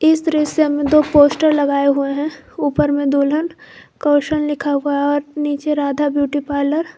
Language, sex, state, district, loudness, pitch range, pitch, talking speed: Hindi, female, Jharkhand, Garhwa, -17 LUFS, 285-305 Hz, 290 Hz, 170 wpm